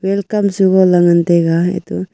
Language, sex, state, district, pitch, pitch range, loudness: Wancho, female, Arunachal Pradesh, Longding, 180 Hz, 170-195 Hz, -13 LUFS